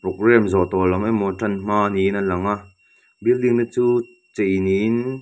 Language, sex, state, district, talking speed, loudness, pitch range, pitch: Mizo, male, Mizoram, Aizawl, 195 wpm, -20 LUFS, 95-120 Hz, 105 Hz